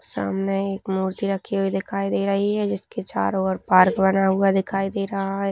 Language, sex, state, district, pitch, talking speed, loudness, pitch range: Hindi, female, Bihar, Purnia, 195 Hz, 205 wpm, -22 LUFS, 190-195 Hz